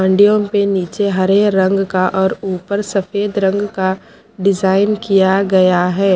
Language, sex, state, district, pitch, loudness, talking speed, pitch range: Hindi, female, Haryana, Charkhi Dadri, 195 Hz, -15 LUFS, 145 wpm, 190-205 Hz